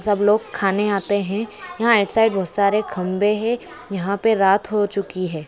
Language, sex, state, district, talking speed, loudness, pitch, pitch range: Hindi, female, Andhra Pradesh, Chittoor, 75 wpm, -20 LUFS, 205 Hz, 195-215 Hz